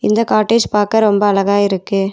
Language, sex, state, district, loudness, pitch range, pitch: Tamil, female, Tamil Nadu, Nilgiris, -14 LUFS, 200-220 Hz, 205 Hz